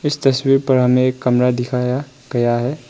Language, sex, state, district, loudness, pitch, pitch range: Hindi, male, Arunachal Pradesh, Papum Pare, -17 LUFS, 125 Hz, 125-135 Hz